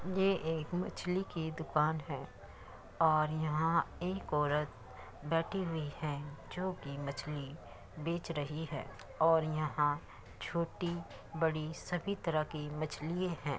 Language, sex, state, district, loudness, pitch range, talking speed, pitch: Hindi, female, Uttar Pradesh, Muzaffarnagar, -36 LUFS, 145-170 Hz, 125 wpm, 155 Hz